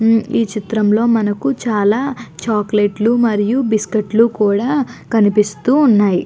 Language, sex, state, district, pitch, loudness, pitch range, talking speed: Telugu, female, Andhra Pradesh, Guntur, 220 Hz, -15 LUFS, 210-235 Hz, 125 wpm